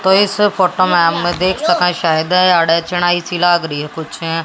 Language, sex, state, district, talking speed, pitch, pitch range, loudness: Hindi, female, Haryana, Jhajjar, 120 wpm, 175 Hz, 165-185 Hz, -14 LUFS